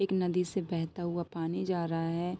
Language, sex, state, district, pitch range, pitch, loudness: Hindi, female, Jharkhand, Sahebganj, 170-180 Hz, 175 Hz, -33 LUFS